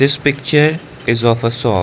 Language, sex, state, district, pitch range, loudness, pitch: English, male, Arunachal Pradesh, Lower Dibang Valley, 115-150 Hz, -14 LUFS, 135 Hz